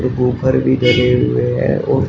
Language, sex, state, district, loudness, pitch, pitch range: Hindi, male, Uttar Pradesh, Shamli, -15 LUFS, 125 Hz, 120-125 Hz